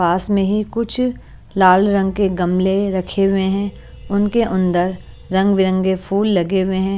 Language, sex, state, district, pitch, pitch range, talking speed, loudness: Hindi, female, Chandigarh, Chandigarh, 195 Hz, 185-200 Hz, 155 wpm, -17 LUFS